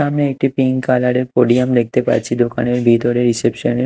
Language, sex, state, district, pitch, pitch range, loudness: Bengali, male, Odisha, Malkangiri, 125 Hz, 120-130 Hz, -15 LUFS